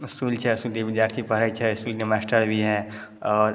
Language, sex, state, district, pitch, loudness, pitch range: Maithili, male, Bihar, Samastipur, 110 Hz, -24 LUFS, 110-115 Hz